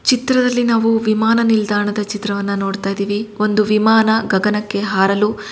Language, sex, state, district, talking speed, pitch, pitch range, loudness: Kannada, female, Karnataka, Shimoga, 240 wpm, 210 Hz, 200-225 Hz, -16 LUFS